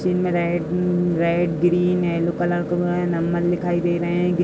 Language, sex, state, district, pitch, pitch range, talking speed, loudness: Hindi, female, Uttar Pradesh, Budaun, 175 Hz, 170-175 Hz, 160 wpm, -21 LUFS